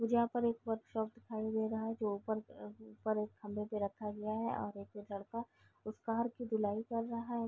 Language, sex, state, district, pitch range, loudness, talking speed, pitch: Hindi, female, Uttar Pradesh, Gorakhpur, 210-230 Hz, -39 LUFS, 235 wpm, 220 Hz